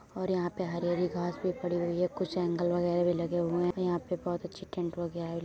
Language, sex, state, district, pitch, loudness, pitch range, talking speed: Hindi, female, Uttar Pradesh, Jyotiba Phule Nagar, 175 Hz, -32 LUFS, 175-180 Hz, 255 wpm